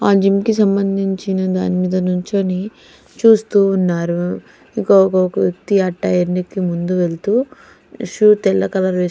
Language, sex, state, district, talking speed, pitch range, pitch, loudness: Telugu, female, Andhra Pradesh, Chittoor, 130 wpm, 180-200 Hz, 190 Hz, -16 LUFS